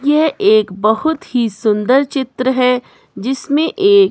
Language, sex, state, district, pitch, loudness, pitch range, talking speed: Hindi, female, Himachal Pradesh, Shimla, 260 Hz, -15 LUFS, 220-300 Hz, 130 wpm